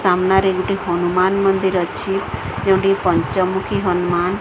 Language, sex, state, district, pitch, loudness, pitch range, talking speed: Odia, female, Odisha, Sambalpur, 185 Hz, -18 LUFS, 180-195 Hz, 135 wpm